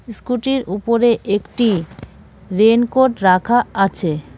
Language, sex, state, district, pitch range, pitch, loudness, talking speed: Bengali, female, West Bengal, Cooch Behar, 190-240 Hz, 225 Hz, -16 LUFS, 80 wpm